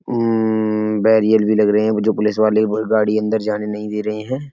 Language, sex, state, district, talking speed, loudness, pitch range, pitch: Hindi, male, Uttar Pradesh, Etah, 210 wpm, -17 LUFS, 105-110 Hz, 110 Hz